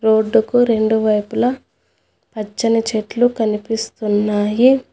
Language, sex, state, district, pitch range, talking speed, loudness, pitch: Telugu, female, Telangana, Hyderabad, 215-235 Hz, 85 wpm, -17 LUFS, 220 Hz